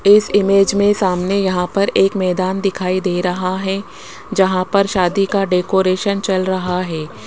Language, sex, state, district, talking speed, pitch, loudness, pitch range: Hindi, male, Rajasthan, Jaipur, 165 wpm, 190 Hz, -16 LUFS, 180-195 Hz